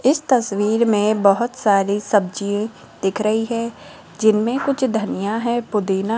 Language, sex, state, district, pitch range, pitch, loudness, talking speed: Hindi, female, Rajasthan, Jaipur, 205-235 Hz, 215 Hz, -19 LUFS, 145 wpm